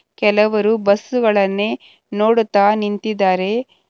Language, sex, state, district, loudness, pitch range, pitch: Kannada, female, Karnataka, Bangalore, -16 LUFS, 200-220 Hz, 210 Hz